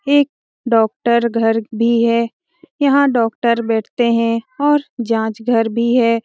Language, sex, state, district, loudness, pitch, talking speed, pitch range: Hindi, female, Bihar, Jamui, -16 LUFS, 235 Hz, 135 wpm, 230-270 Hz